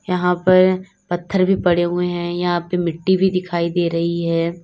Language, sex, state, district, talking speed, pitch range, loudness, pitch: Hindi, female, Uttar Pradesh, Lalitpur, 195 wpm, 170-185 Hz, -18 LUFS, 175 Hz